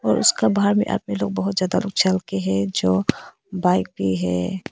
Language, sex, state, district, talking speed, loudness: Hindi, female, Arunachal Pradesh, Papum Pare, 150 wpm, -21 LUFS